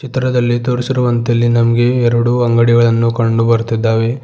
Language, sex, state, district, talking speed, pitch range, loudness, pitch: Kannada, male, Karnataka, Bidar, 115 wpm, 115-125 Hz, -13 LUFS, 120 Hz